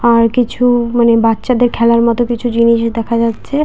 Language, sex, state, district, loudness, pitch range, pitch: Bengali, female, West Bengal, Paschim Medinipur, -12 LUFS, 230-240 Hz, 235 Hz